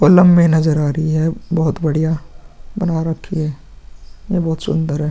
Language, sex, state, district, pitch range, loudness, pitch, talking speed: Hindi, male, Bihar, Vaishali, 150-165 Hz, -16 LUFS, 160 Hz, 150 wpm